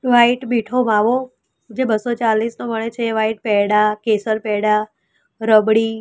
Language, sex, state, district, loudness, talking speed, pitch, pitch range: Gujarati, female, Gujarat, Gandhinagar, -17 LUFS, 160 wpm, 225 Hz, 215-235 Hz